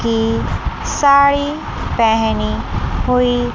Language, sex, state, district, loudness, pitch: Hindi, female, Chandigarh, Chandigarh, -16 LUFS, 225 Hz